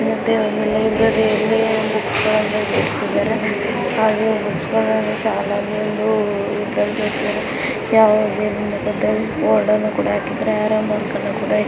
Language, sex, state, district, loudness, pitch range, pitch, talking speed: Kannada, female, Karnataka, Chamarajanagar, -18 LUFS, 205-220 Hz, 215 Hz, 35 wpm